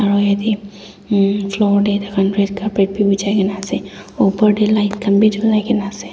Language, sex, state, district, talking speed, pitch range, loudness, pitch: Nagamese, female, Nagaland, Dimapur, 195 wpm, 200-210 Hz, -16 LUFS, 205 Hz